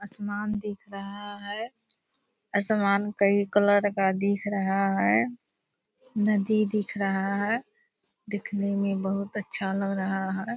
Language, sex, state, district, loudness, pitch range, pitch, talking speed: Hindi, female, Bihar, Purnia, -26 LUFS, 195-210 Hz, 205 Hz, 125 wpm